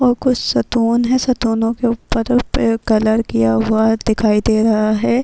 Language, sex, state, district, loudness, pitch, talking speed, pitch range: Urdu, female, Bihar, Kishanganj, -16 LUFS, 225 Hz, 170 wpm, 220-240 Hz